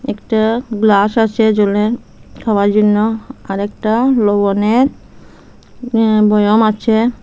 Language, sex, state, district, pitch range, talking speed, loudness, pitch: Bengali, female, Assam, Hailakandi, 210-225 Hz, 100 wpm, -14 LUFS, 220 Hz